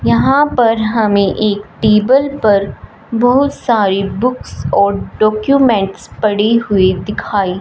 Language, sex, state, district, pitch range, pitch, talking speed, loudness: Hindi, female, Punjab, Fazilka, 200-240 Hz, 215 Hz, 110 wpm, -13 LUFS